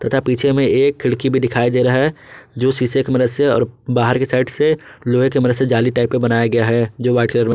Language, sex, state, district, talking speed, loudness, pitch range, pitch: Hindi, male, Jharkhand, Ranchi, 270 wpm, -16 LUFS, 120-135 Hz, 125 Hz